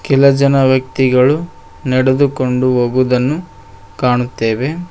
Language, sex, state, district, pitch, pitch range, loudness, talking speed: Kannada, male, Karnataka, Koppal, 130 Hz, 125-140 Hz, -14 LUFS, 75 wpm